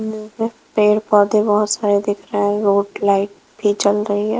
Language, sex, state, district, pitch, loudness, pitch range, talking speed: Hindi, female, Chhattisgarh, Raipur, 205 Hz, -17 LUFS, 205-215 Hz, 175 wpm